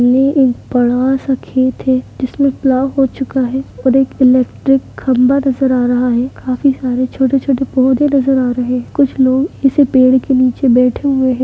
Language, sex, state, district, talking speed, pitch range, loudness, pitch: Hindi, female, Bihar, Sitamarhi, 190 wpm, 255-270 Hz, -13 LUFS, 260 Hz